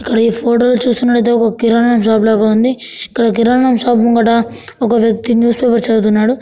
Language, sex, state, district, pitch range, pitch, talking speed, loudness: Telugu, female, Telangana, Nalgonda, 225-240 Hz, 235 Hz, 170 wpm, -12 LUFS